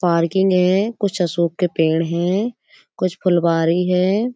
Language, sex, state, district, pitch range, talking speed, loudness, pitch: Hindi, female, Uttar Pradesh, Budaun, 170-190 Hz, 135 wpm, -18 LUFS, 180 Hz